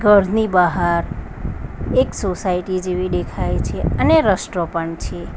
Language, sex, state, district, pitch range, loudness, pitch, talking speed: Gujarati, female, Gujarat, Valsad, 175-205 Hz, -19 LUFS, 185 Hz, 125 wpm